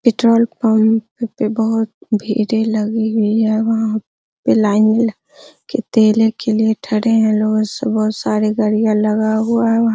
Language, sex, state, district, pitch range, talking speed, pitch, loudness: Hindi, female, Bihar, Araria, 215-225 Hz, 170 wpm, 220 Hz, -16 LUFS